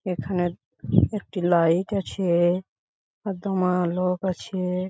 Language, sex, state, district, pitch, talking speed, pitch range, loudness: Bengali, male, West Bengal, Paschim Medinipur, 180 Hz, 110 wpm, 175-190 Hz, -24 LUFS